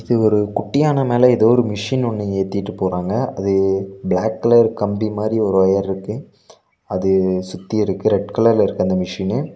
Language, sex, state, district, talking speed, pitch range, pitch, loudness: Tamil, male, Tamil Nadu, Nilgiris, 155 wpm, 95-115 Hz, 105 Hz, -18 LUFS